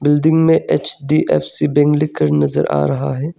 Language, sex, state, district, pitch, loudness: Hindi, male, Arunachal Pradesh, Longding, 145 Hz, -14 LUFS